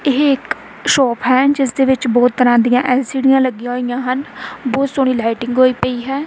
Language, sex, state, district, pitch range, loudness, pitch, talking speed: Punjabi, female, Punjab, Kapurthala, 245-270 Hz, -15 LUFS, 255 Hz, 190 wpm